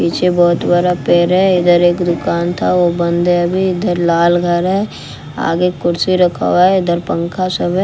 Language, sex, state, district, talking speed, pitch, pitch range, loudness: Hindi, female, Bihar, West Champaran, 200 wpm, 175 Hz, 170-180 Hz, -14 LUFS